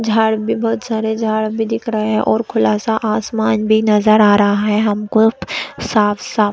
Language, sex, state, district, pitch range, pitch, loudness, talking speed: Hindi, female, Chhattisgarh, Raigarh, 210-225 Hz, 220 Hz, -15 LUFS, 185 wpm